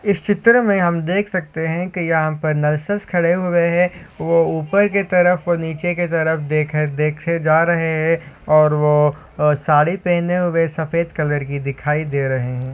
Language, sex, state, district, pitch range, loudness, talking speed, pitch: Hindi, male, Maharashtra, Solapur, 150-175 Hz, -18 LUFS, 185 wpm, 165 Hz